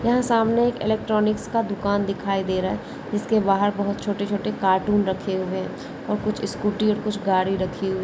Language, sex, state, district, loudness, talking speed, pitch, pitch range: Hindi, female, Rajasthan, Nagaur, -23 LUFS, 195 wpm, 205 Hz, 195-215 Hz